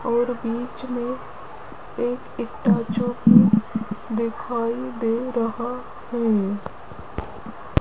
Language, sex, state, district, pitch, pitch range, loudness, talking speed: Hindi, female, Rajasthan, Jaipur, 235 Hz, 220-245 Hz, -23 LUFS, 75 wpm